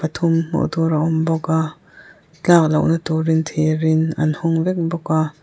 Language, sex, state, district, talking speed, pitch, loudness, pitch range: Mizo, female, Mizoram, Aizawl, 210 wpm, 160 Hz, -18 LUFS, 155-165 Hz